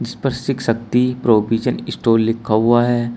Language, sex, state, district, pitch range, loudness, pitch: Hindi, male, Uttar Pradesh, Shamli, 115-125 Hz, -17 LUFS, 120 Hz